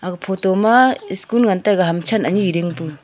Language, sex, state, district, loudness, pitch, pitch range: Wancho, female, Arunachal Pradesh, Longding, -17 LUFS, 190 Hz, 175-220 Hz